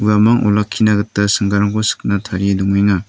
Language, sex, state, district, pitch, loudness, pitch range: Garo, male, Meghalaya, North Garo Hills, 105 Hz, -15 LUFS, 100-105 Hz